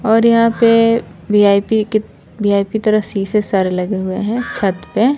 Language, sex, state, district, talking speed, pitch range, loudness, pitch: Hindi, male, Bihar, West Champaran, 160 wpm, 195-230 Hz, -15 LUFS, 215 Hz